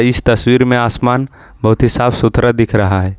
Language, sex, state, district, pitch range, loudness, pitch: Hindi, male, Jharkhand, Ranchi, 110-125 Hz, -13 LUFS, 120 Hz